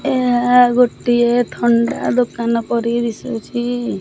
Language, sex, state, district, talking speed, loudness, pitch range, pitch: Odia, male, Odisha, Khordha, 105 wpm, -16 LUFS, 235-245 Hz, 240 Hz